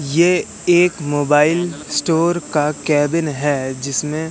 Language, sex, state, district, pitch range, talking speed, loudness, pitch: Hindi, male, Madhya Pradesh, Katni, 145-170 Hz, 110 wpm, -17 LUFS, 150 Hz